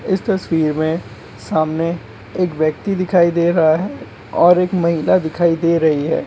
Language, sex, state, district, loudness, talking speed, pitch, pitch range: Hindi, male, West Bengal, Purulia, -16 LUFS, 165 wpm, 165 Hz, 155-180 Hz